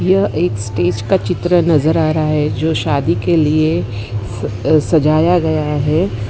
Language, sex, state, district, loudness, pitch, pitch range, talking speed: Hindi, female, Gujarat, Valsad, -15 LUFS, 150 Hz, 110-160 Hz, 160 wpm